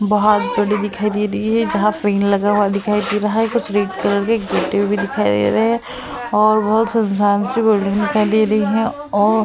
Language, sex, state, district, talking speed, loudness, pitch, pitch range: Hindi, female, Uttar Pradesh, Hamirpur, 215 wpm, -17 LUFS, 210 Hz, 205-215 Hz